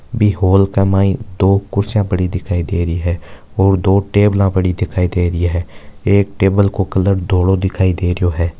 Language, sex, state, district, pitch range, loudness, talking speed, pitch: Marwari, male, Rajasthan, Nagaur, 90-100 Hz, -15 LUFS, 180 wpm, 95 Hz